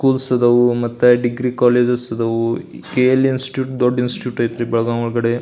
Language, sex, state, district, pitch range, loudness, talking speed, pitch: Kannada, male, Karnataka, Belgaum, 120-125 Hz, -17 LUFS, 145 wpm, 120 Hz